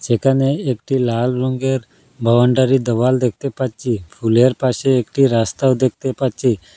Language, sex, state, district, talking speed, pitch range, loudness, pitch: Bengali, male, Assam, Hailakandi, 125 wpm, 120-130 Hz, -17 LUFS, 130 Hz